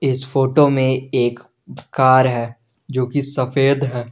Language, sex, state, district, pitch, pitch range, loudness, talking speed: Hindi, male, Jharkhand, Garhwa, 130 Hz, 120-135 Hz, -17 LUFS, 145 wpm